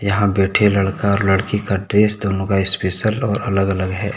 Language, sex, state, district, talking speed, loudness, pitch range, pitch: Hindi, male, Jharkhand, Deoghar, 200 wpm, -18 LUFS, 95-105 Hz, 100 Hz